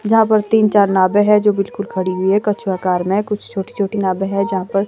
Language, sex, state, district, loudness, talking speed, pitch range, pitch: Hindi, female, Himachal Pradesh, Shimla, -16 LUFS, 220 wpm, 190-210 Hz, 200 Hz